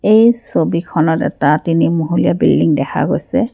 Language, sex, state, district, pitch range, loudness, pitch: Assamese, female, Assam, Kamrup Metropolitan, 160-225 Hz, -14 LUFS, 170 Hz